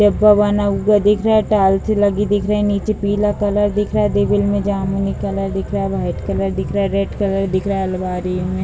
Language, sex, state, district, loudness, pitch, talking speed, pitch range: Hindi, female, Bihar, Jahanabad, -17 LUFS, 200 Hz, 245 wpm, 195-205 Hz